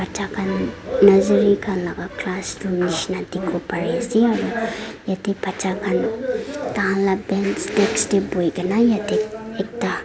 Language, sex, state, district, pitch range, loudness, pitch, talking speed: Nagamese, female, Nagaland, Dimapur, 185-220 Hz, -21 LUFS, 200 Hz, 130 wpm